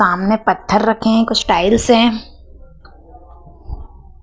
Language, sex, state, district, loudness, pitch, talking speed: Hindi, female, Madhya Pradesh, Dhar, -14 LUFS, 175 Hz, 100 wpm